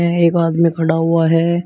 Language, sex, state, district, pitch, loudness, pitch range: Hindi, male, Uttar Pradesh, Shamli, 165 Hz, -15 LUFS, 165-170 Hz